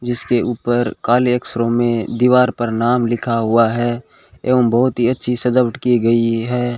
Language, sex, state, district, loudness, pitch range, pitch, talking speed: Hindi, male, Rajasthan, Bikaner, -16 LUFS, 115-125 Hz, 120 Hz, 170 wpm